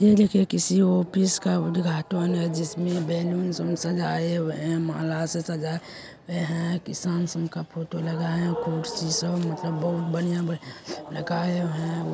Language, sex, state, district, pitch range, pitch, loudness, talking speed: Hindi, male, Bihar, Saharsa, 165-175 Hz, 170 Hz, -26 LUFS, 145 wpm